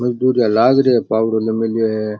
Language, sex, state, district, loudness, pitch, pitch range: Rajasthani, male, Rajasthan, Churu, -16 LUFS, 115 Hz, 110-125 Hz